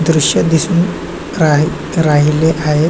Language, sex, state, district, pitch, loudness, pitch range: Marathi, male, Maharashtra, Chandrapur, 160 Hz, -13 LUFS, 150-165 Hz